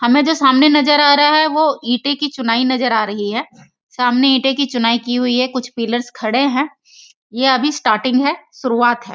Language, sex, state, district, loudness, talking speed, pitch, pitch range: Hindi, female, Bihar, Sitamarhi, -15 LUFS, 210 wpm, 260 Hz, 240-285 Hz